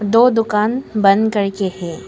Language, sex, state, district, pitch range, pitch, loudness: Hindi, female, Arunachal Pradesh, Papum Pare, 195-225 Hz, 210 Hz, -16 LUFS